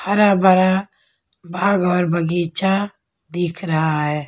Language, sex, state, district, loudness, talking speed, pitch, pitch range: Hindi, female, Bihar, Patna, -18 LUFS, 110 wpm, 180 Hz, 170-195 Hz